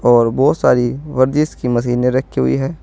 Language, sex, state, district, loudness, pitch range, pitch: Hindi, male, Uttar Pradesh, Saharanpur, -15 LUFS, 120-135 Hz, 125 Hz